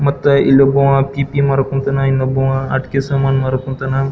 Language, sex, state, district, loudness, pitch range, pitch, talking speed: Kannada, male, Karnataka, Belgaum, -15 LUFS, 135-140 Hz, 135 Hz, 145 wpm